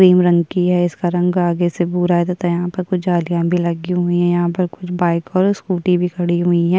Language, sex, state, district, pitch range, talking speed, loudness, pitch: Hindi, female, Uttar Pradesh, Budaun, 175-180 Hz, 255 wpm, -17 LUFS, 175 Hz